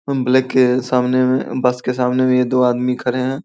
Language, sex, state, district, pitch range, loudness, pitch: Hindi, male, Bihar, Samastipur, 125-130 Hz, -16 LUFS, 130 Hz